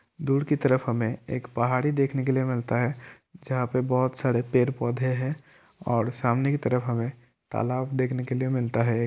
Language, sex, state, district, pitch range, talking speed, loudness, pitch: Hindi, male, Bihar, Kishanganj, 120-135 Hz, 190 wpm, -26 LUFS, 125 Hz